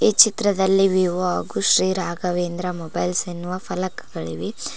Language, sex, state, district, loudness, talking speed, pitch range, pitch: Kannada, female, Karnataka, Koppal, -21 LUFS, 115 wpm, 175-190 Hz, 180 Hz